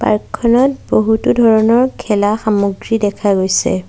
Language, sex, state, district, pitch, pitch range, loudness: Assamese, female, Assam, Sonitpur, 215 Hz, 205-235 Hz, -14 LUFS